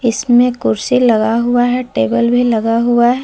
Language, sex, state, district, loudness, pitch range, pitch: Hindi, female, Jharkhand, Palamu, -13 LUFS, 230-245 Hz, 240 Hz